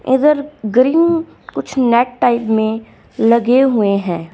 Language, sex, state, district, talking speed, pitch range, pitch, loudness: Hindi, female, Haryana, Rohtak, 125 wpm, 220-270 Hz, 245 Hz, -14 LUFS